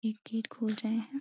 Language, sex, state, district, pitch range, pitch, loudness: Hindi, female, Uttar Pradesh, Deoria, 220-230 Hz, 225 Hz, -35 LUFS